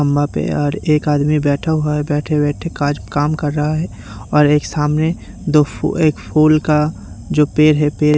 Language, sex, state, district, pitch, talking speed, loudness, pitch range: Hindi, male, Bihar, Katihar, 150 Hz, 205 wpm, -16 LUFS, 145-155 Hz